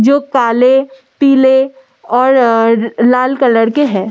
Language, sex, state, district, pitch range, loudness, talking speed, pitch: Hindi, female, Delhi, New Delhi, 230-270 Hz, -11 LUFS, 115 wpm, 260 Hz